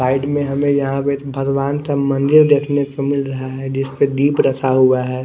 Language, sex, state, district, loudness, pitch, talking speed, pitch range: Hindi, male, Chandigarh, Chandigarh, -17 LUFS, 140 Hz, 205 wpm, 135-140 Hz